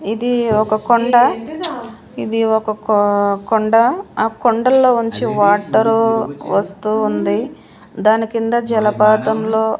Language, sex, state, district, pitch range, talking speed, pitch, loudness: Telugu, female, Andhra Pradesh, Manyam, 215-235 Hz, 100 wpm, 220 Hz, -15 LUFS